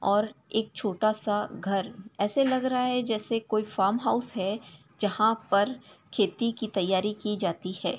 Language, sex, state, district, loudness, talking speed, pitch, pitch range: Hindi, female, Uttar Pradesh, Ghazipur, -28 LUFS, 160 wpm, 210 Hz, 200-225 Hz